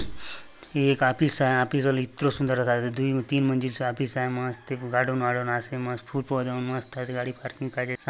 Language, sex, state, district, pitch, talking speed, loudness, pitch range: Halbi, male, Chhattisgarh, Bastar, 130 Hz, 220 wpm, -26 LUFS, 125-135 Hz